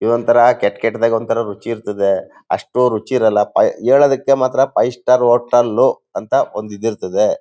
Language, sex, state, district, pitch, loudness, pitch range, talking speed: Kannada, male, Karnataka, Mysore, 115 Hz, -15 LUFS, 105-125 Hz, 145 wpm